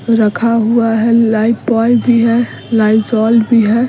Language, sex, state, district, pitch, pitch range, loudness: Hindi, female, Bihar, Patna, 230 Hz, 220-235 Hz, -12 LUFS